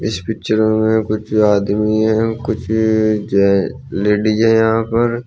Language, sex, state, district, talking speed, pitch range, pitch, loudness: Hindi, male, Uttar Pradesh, Shamli, 135 wpm, 105-110 Hz, 110 Hz, -15 LUFS